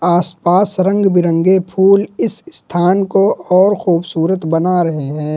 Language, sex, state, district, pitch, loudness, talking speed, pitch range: Hindi, male, Jharkhand, Ranchi, 180 Hz, -14 LUFS, 135 wpm, 170-195 Hz